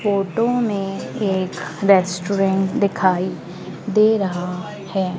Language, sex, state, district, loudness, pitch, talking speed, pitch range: Hindi, female, Madhya Pradesh, Dhar, -20 LUFS, 195 Hz, 90 wpm, 185-205 Hz